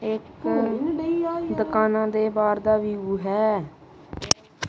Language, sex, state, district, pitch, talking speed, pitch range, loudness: Punjabi, male, Punjab, Kapurthala, 215 Hz, 90 wpm, 210-225 Hz, -24 LUFS